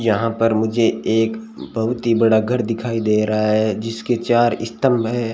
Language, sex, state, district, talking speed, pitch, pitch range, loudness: Hindi, male, Rajasthan, Bikaner, 180 wpm, 115 Hz, 110-115 Hz, -18 LUFS